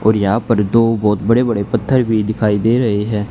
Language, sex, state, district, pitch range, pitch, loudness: Hindi, male, Haryana, Rohtak, 105-115 Hz, 110 Hz, -15 LUFS